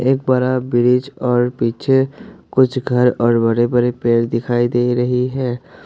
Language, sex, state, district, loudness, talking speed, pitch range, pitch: Hindi, male, Assam, Sonitpur, -17 LUFS, 155 wpm, 120-130 Hz, 125 Hz